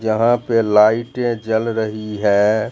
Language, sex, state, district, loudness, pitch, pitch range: Hindi, male, Bihar, Katihar, -17 LUFS, 110 Hz, 105-115 Hz